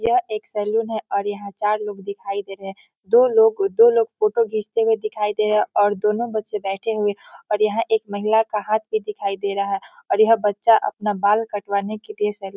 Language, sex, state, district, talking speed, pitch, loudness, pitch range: Hindi, female, Bihar, Muzaffarpur, 235 wpm, 215 Hz, -21 LUFS, 205-230 Hz